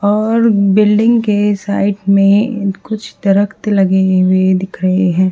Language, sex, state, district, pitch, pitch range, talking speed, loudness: Hindi, female, Haryana, Charkhi Dadri, 200 Hz, 190-210 Hz, 135 wpm, -13 LUFS